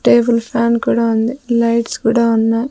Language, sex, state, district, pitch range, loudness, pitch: Telugu, female, Andhra Pradesh, Sri Satya Sai, 230-235 Hz, -15 LUFS, 235 Hz